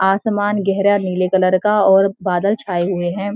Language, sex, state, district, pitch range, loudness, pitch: Hindi, female, Uttarakhand, Uttarkashi, 185-205 Hz, -16 LUFS, 195 Hz